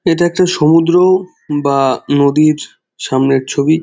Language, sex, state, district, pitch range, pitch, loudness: Bengali, male, West Bengal, Jhargram, 140-175 Hz, 155 Hz, -13 LUFS